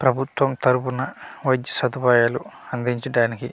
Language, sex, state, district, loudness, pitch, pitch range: Telugu, male, Andhra Pradesh, Manyam, -21 LUFS, 125 Hz, 125-130 Hz